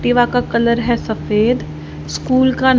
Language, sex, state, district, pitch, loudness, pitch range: Hindi, female, Haryana, Charkhi Dadri, 240 Hz, -16 LUFS, 210-245 Hz